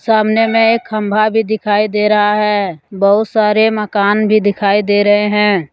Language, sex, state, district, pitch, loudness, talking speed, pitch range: Hindi, male, Jharkhand, Deoghar, 210 Hz, -13 LUFS, 180 wpm, 205-215 Hz